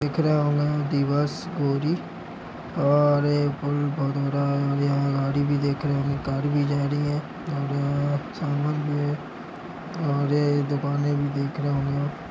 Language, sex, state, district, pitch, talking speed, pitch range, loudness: Hindi, male, Maharashtra, Nagpur, 145 Hz, 165 wpm, 140-145 Hz, -25 LUFS